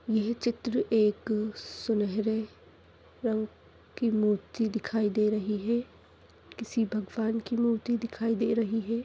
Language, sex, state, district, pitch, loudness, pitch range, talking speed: Hindi, female, Maharashtra, Nagpur, 225 Hz, -30 LUFS, 215-230 Hz, 125 wpm